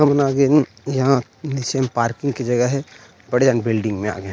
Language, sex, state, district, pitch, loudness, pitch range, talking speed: Chhattisgarhi, male, Chhattisgarh, Rajnandgaon, 125 Hz, -19 LUFS, 115-140 Hz, 195 wpm